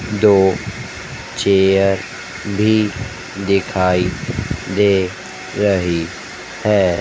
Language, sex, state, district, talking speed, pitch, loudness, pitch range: Hindi, female, Madhya Pradesh, Dhar, 60 wpm, 95 Hz, -17 LUFS, 90-105 Hz